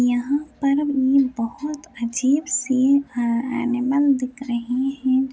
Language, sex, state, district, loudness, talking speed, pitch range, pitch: Hindi, female, Uttar Pradesh, Hamirpur, -21 LUFS, 125 wpm, 245-280 Hz, 260 Hz